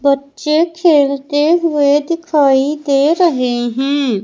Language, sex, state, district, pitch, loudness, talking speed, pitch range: Hindi, female, Madhya Pradesh, Umaria, 285 Hz, -14 LUFS, 100 wpm, 275-315 Hz